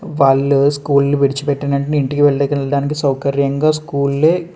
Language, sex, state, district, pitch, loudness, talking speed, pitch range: Telugu, male, Andhra Pradesh, Srikakulam, 140 Hz, -15 LUFS, 145 wpm, 140-145 Hz